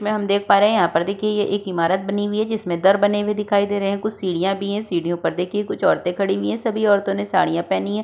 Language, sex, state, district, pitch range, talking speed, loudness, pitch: Hindi, female, Uttar Pradesh, Budaun, 185-205 Hz, 305 wpm, -20 LUFS, 200 Hz